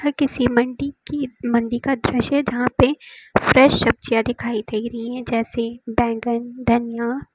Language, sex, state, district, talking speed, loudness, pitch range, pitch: Hindi, female, Uttar Pradesh, Lucknow, 140 wpm, -20 LUFS, 235-265 Hz, 240 Hz